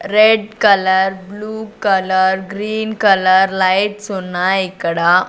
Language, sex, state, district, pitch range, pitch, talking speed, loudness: Telugu, female, Andhra Pradesh, Sri Satya Sai, 190-210 Hz, 195 Hz, 100 wpm, -15 LUFS